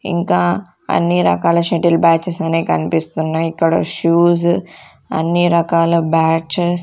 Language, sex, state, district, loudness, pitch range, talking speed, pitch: Telugu, female, Andhra Pradesh, Sri Satya Sai, -15 LUFS, 160-170 Hz, 115 wpm, 165 Hz